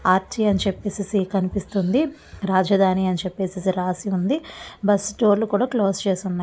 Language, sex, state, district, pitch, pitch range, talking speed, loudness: Telugu, female, Andhra Pradesh, Visakhapatnam, 195 Hz, 185-205 Hz, 160 wpm, -22 LUFS